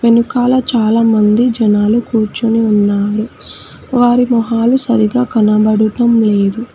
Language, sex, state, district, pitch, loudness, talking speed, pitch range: Telugu, female, Telangana, Hyderabad, 230 Hz, -12 LUFS, 90 wpm, 215-240 Hz